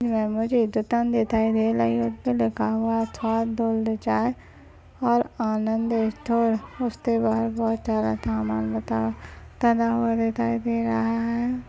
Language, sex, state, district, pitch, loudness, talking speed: Hindi, female, Maharashtra, Chandrapur, 225 Hz, -24 LUFS, 155 wpm